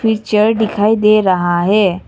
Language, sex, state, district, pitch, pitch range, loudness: Hindi, female, Arunachal Pradesh, Papum Pare, 210 Hz, 190-215 Hz, -13 LUFS